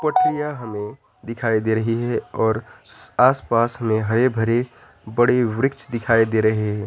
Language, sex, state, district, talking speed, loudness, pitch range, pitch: Hindi, male, West Bengal, Alipurduar, 150 wpm, -20 LUFS, 110-120 Hz, 115 Hz